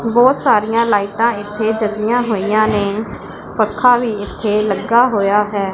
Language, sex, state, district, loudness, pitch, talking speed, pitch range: Punjabi, female, Punjab, Pathankot, -15 LUFS, 215 Hz, 135 wpm, 205-235 Hz